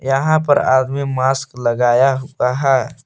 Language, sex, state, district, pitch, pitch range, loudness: Hindi, male, Jharkhand, Palamu, 135 Hz, 130-140 Hz, -16 LUFS